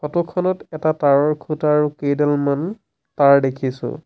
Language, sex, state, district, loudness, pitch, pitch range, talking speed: Assamese, male, Assam, Sonitpur, -19 LUFS, 150 Hz, 140-155 Hz, 135 wpm